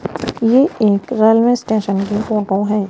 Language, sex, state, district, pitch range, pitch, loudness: Hindi, female, Rajasthan, Jaipur, 205-230 Hz, 215 Hz, -15 LUFS